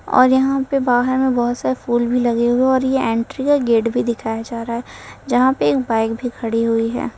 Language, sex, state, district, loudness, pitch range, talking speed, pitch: Hindi, female, Uttar Pradesh, Lalitpur, -18 LUFS, 230-260 Hz, 240 wpm, 240 Hz